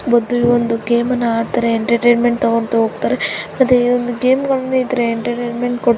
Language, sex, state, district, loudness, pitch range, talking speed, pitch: Kannada, female, Karnataka, Gulbarga, -16 LUFS, 235-245 Hz, 170 wpm, 240 Hz